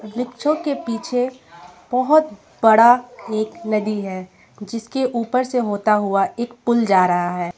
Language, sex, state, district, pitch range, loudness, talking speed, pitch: Hindi, female, Jharkhand, Garhwa, 205-245 Hz, -19 LUFS, 140 wpm, 230 Hz